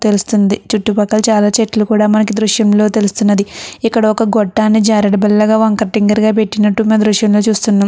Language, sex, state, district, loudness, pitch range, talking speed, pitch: Telugu, female, Andhra Pradesh, Chittoor, -12 LUFS, 210-220 Hz, 135 wpm, 215 Hz